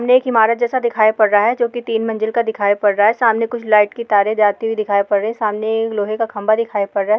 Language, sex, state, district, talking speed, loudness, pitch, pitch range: Hindi, female, Bihar, Bhagalpur, 310 wpm, -16 LUFS, 220 Hz, 210-230 Hz